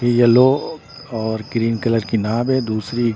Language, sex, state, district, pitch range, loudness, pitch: Hindi, male, Bihar, Patna, 110-125 Hz, -18 LUFS, 115 Hz